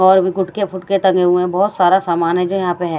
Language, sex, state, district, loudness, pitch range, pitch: Hindi, female, Haryana, Rohtak, -15 LUFS, 180-190 Hz, 185 Hz